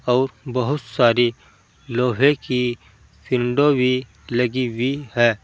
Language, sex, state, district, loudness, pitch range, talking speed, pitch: Hindi, male, Uttar Pradesh, Saharanpur, -20 LUFS, 120-130 Hz, 110 wpm, 125 Hz